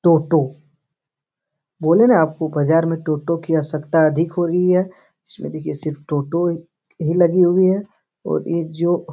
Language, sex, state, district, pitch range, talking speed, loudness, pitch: Hindi, male, Bihar, Supaul, 150-175 Hz, 165 wpm, -18 LUFS, 165 Hz